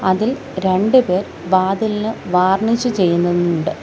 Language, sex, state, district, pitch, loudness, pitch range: Malayalam, female, Kerala, Kollam, 190 Hz, -17 LUFS, 180-220 Hz